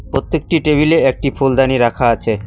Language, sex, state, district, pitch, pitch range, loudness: Bengali, male, West Bengal, Cooch Behar, 135 Hz, 120-155 Hz, -14 LUFS